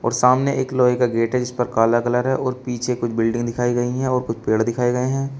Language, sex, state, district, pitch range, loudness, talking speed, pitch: Hindi, male, Uttar Pradesh, Shamli, 120-130 Hz, -20 LUFS, 280 wpm, 125 Hz